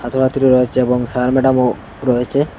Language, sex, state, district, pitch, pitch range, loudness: Bengali, male, Assam, Hailakandi, 125 Hz, 125-130 Hz, -15 LUFS